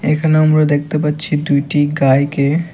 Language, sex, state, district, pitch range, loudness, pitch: Bengali, male, Tripura, West Tripura, 145-155 Hz, -14 LUFS, 150 Hz